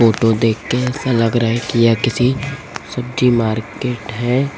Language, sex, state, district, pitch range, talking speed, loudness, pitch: Hindi, male, Chhattisgarh, Raipur, 115-125 Hz, 155 wpm, -17 LUFS, 120 Hz